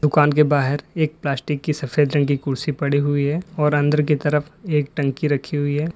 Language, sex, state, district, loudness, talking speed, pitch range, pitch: Hindi, male, Uttar Pradesh, Lalitpur, -20 LUFS, 220 wpm, 145-150 Hz, 150 Hz